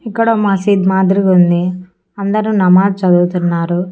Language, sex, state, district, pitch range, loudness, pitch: Telugu, female, Andhra Pradesh, Annamaya, 180-200 Hz, -13 LUFS, 190 Hz